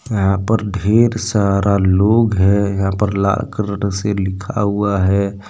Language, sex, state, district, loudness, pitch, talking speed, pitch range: Hindi, male, Jharkhand, Deoghar, -16 LUFS, 100 Hz, 155 wpm, 100-105 Hz